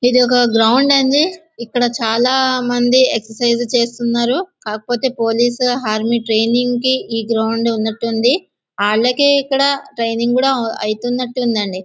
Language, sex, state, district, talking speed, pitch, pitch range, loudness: Telugu, male, Andhra Pradesh, Visakhapatnam, 105 wpm, 245 Hz, 225-255 Hz, -15 LUFS